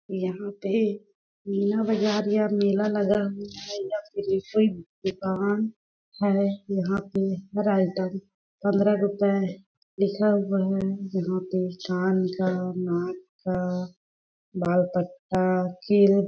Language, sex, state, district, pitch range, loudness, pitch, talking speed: Hindi, female, Chhattisgarh, Balrampur, 185-205 Hz, -26 LUFS, 195 Hz, 120 wpm